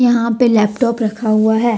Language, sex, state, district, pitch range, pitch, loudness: Hindi, female, Jharkhand, Deoghar, 220-240 Hz, 230 Hz, -14 LUFS